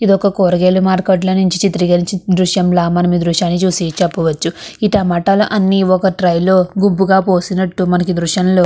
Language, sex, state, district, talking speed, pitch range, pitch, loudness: Telugu, female, Andhra Pradesh, Krishna, 175 wpm, 175-190 Hz, 185 Hz, -13 LUFS